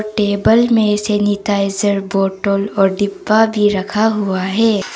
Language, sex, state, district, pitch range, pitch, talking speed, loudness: Hindi, female, Arunachal Pradesh, Papum Pare, 195-215 Hz, 205 Hz, 120 wpm, -15 LUFS